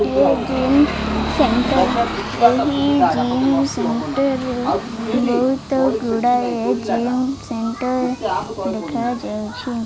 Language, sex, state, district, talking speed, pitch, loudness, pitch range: Odia, female, Odisha, Malkangiri, 75 wpm, 245 Hz, -19 LUFS, 235-265 Hz